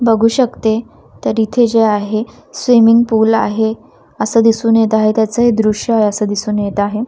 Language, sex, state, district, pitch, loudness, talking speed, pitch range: Marathi, female, Maharashtra, Washim, 220 Hz, -13 LUFS, 170 wpm, 215-230 Hz